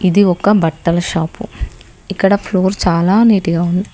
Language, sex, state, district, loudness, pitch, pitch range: Telugu, female, Telangana, Hyderabad, -14 LUFS, 180 Hz, 170-195 Hz